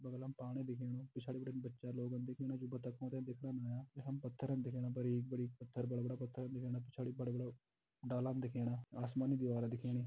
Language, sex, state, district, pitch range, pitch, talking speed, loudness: Hindi, male, Uttarakhand, Tehri Garhwal, 125-130 Hz, 125 Hz, 165 wpm, -44 LUFS